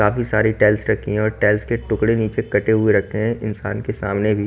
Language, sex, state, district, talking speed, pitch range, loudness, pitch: Hindi, male, Haryana, Charkhi Dadri, 255 wpm, 105-110 Hz, -19 LUFS, 105 Hz